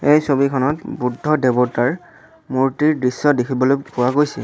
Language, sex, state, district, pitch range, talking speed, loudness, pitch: Assamese, male, Assam, Sonitpur, 125-145 Hz, 120 wpm, -18 LUFS, 135 Hz